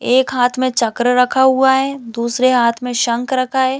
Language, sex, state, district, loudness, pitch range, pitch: Hindi, female, Chhattisgarh, Balrampur, -15 LUFS, 240-260 Hz, 250 Hz